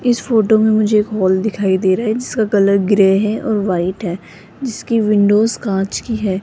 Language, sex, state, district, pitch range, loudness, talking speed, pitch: Hindi, female, Rajasthan, Jaipur, 195-220 Hz, -15 LUFS, 205 wpm, 210 Hz